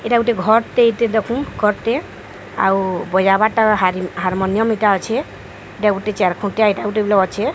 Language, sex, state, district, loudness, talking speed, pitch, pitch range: Odia, female, Odisha, Sambalpur, -17 LUFS, 120 wpm, 210 Hz, 195-225 Hz